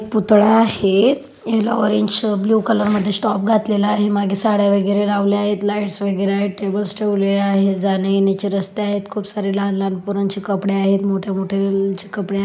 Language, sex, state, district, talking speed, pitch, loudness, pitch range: Marathi, female, Maharashtra, Solapur, 160 wpm, 200 Hz, -18 LUFS, 195-210 Hz